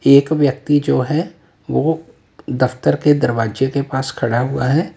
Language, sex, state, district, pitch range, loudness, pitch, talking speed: Hindi, male, Uttar Pradesh, Lalitpur, 130-150 Hz, -17 LUFS, 140 Hz, 155 wpm